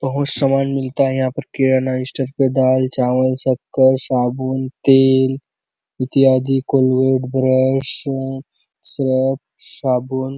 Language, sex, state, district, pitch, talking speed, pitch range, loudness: Hindi, male, Chhattisgarh, Bastar, 130 Hz, 120 wpm, 130-135 Hz, -17 LUFS